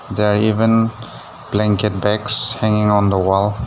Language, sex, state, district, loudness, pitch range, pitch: English, male, Nagaland, Dimapur, -15 LUFS, 105-110 Hz, 105 Hz